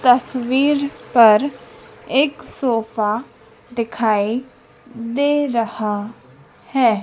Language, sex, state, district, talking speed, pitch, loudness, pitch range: Hindi, female, Madhya Pradesh, Dhar, 70 wpm, 240 Hz, -19 LUFS, 225-265 Hz